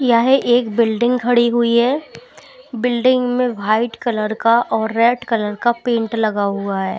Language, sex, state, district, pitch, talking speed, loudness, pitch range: Hindi, female, Bihar, Patna, 235 Hz, 165 wpm, -17 LUFS, 220-245 Hz